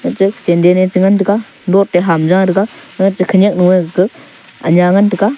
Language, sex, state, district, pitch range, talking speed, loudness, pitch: Wancho, male, Arunachal Pradesh, Longding, 180-200 Hz, 180 wpm, -12 LUFS, 190 Hz